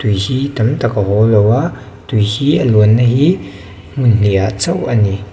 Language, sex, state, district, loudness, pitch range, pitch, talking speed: Mizo, male, Mizoram, Aizawl, -13 LUFS, 100-125 Hz, 110 Hz, 225 wpm